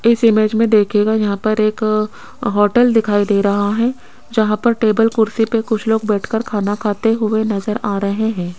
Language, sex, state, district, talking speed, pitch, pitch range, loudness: Hindi, female, Rajasthan, Jaipur, 190 wpm, 215 Hz, 205-225 Hz, -16 LUFS